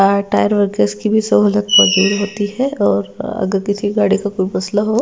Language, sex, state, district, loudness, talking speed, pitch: Hindi, female, Delhi, New Delhi, -15 LUFS, 190 wpm, 200 Hz